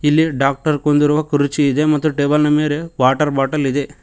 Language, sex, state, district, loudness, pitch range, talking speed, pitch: Kannada, male, Karnataka, Koppal, -16 LUFS, 145-150 Hz, 165 wpm, 150 Hz